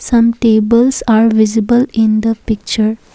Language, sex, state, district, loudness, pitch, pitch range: English, female, Assam, Kamrup Metropolitan, -12 LUFS, 225 Hz, 220-235 Hz